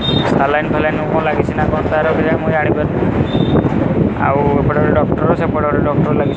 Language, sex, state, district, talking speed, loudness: Odia, male, Odisha, Khordha, 180 wpm, -15 LUFS